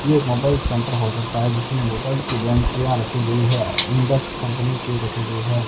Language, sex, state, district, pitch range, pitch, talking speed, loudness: Hindi, male, Rajasthan, Bikaner, 115-130 Hz, 120 Hz, 200 wpm, -20 LUFS